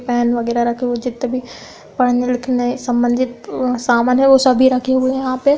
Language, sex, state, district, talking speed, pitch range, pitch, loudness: Hindi, female, Uttar Pradesh, Budaun, 205 wpm, 245-255 Hz, 250 Hz, -16 LUFS